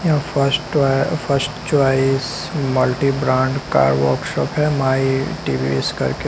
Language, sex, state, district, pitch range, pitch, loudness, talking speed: Hindi, male, Uttar Pradesh, Lalitpur, 130-145 Hz, 135 Hz, -18 LUFS, 125 wpm